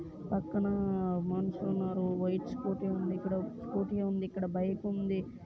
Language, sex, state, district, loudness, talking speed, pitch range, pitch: Telugu, female, Andhra Pradesh, Srikakulam, -34 LUFS, 130 wpm, 185-200 Hz, 190 Hz